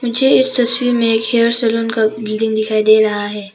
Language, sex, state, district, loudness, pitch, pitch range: Hindi, female, Arunachal Pradesh, Papum Pare, -14 LUFS, 225 Hz, 215-235 Hz